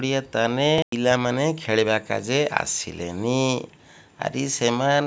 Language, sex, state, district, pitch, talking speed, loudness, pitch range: Odia, male, Odisha, Malkangiri, 125 Hz, 95 wpm, -23 LUFS, 115-140 Hz